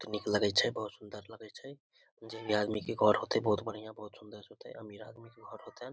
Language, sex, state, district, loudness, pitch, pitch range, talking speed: Maithili, male, Bihar, Samastipur, -32 LUFS, 110 Hz, 105-115 Hz, 240 wpm